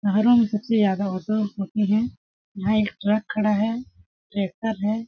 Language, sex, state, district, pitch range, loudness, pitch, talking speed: Hindi, female, Chhattisgarh, Sarguja, 200-220 Hz, -23 LUFS, 210 Hz, 165 wpm